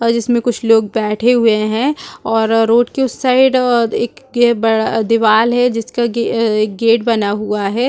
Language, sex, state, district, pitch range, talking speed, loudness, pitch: Hindi, female, Chhattisgarh, Rajnandgaon, 220-240 Hz, 160 wpm, -14 LUFS, 230 Hz